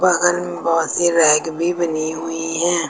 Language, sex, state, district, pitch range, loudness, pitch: Hindi, female, Uttar Pradesh, Lucknow, 165-175 Hz, -18 LUFS, 165 Hz